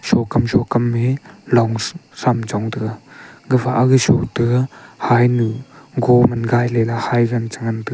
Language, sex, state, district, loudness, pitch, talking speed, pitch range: Wancho, male, Arunachal Pradesh, Longding, -17 LUFS, 120 Hz, 130 wpm, 115-125 Hz